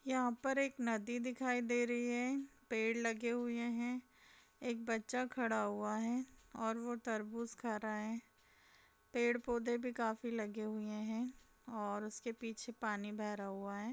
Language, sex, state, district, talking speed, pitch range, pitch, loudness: Hindi, female, Jharkhand, Sahebganj, 160 wpm, 215-240 Hz, 235 Hz, -40 LUFS